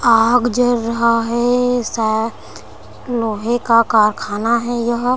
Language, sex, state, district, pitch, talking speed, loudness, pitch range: Hindi, female, Chhattisgarh, Raigarh, 230 Hz, 115 wpm, -16 LUFS, 220-240 Hz